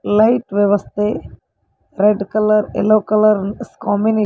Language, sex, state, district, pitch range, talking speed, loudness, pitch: Kannada, female, Karnataka, Koppal, 200-215 Hz, 110 wpm, -16 LUFS, 210 Hz